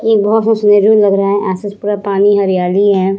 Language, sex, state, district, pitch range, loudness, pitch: Hindi, female, Bihar, Vaishali, 195-205 Hz, -12 LUFS, 205 Hz